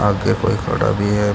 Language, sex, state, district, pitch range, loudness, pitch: Hindi, male, Uttar Pradesh, Shamli, 100-115 Hz, -18 LUFS, 105 Hz